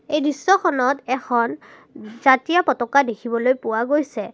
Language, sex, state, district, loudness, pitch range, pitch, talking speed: Assamese, female, Assam, Kamrup Metropolitan, -20 LUFS, 235-295 Hz, 265 Hz, 110 wpm